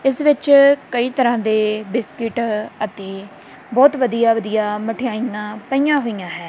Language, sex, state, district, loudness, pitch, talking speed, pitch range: Punjabi, female, Punjab, Kapurthala, -18 LUFS, 230 Hz, 130 wpm, 215-260 Hz